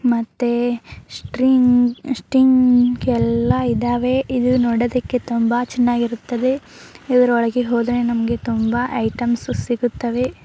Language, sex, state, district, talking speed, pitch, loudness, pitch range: Kannada, female, Karnataka, Bijapur, 85 wpm, 245 Hz, -18 LUFS, 235-250 Hz